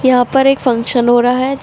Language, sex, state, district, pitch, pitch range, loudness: Hindi, female, Uttar Pradesh, Shamli, 250 Hz, 240-270 Hz, -12 LUFS